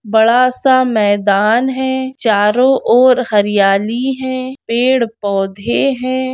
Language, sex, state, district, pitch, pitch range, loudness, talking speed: Hindi, female, Rajasthan, Churu, 245 Hz, 210-260 Hz, -13 LUFS, 105 wpm